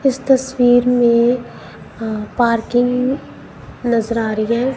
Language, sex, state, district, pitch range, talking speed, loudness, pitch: Hindi, female, Punjab, Kapurthala, 230-255 Hz, 115 wpm, -16 LUFS, 245 Hz